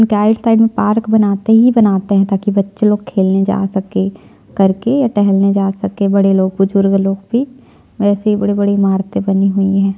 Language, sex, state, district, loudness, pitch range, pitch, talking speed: Hindi, female, Chhattisgarh, Jashpur, -13 LUFS, 195-210 Hz, 200 Hz, 180 wpm